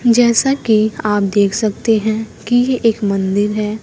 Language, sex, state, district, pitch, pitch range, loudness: Hindi, female, Bihar, Kaimur, 220 Hz, 205-235 Hz, -15 LUFS